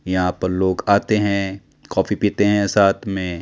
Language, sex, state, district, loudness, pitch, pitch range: Hindi, male, Chandigarh, Chandigarh, -19 LUFS, 100 Hz, 95-105 Hz